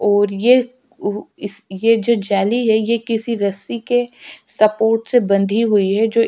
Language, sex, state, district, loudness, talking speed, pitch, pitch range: Hindi, female, Uttarakhand, Tehri Garhwal, -17 LUFS, 180 wpm, 220 Hz, 205-235 Hz